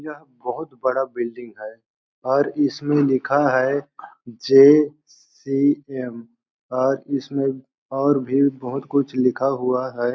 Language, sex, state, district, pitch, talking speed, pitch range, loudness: Hindi, male, Chhattisgarh, Balrampur, 135 Hz, 120 wpm, 125-140 Hz, -20 LUFS